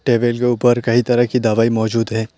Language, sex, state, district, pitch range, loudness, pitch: Hindi, male, West Bengal, Alipurduar, 115-120 Hz, -16 LUFS, 120 Hz